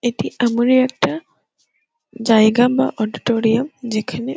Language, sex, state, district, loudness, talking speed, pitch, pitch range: Bengali, female, West Bengal, Kolkata, -17 LUFS, 110 wpm, 240 Hz, 225-265 Hz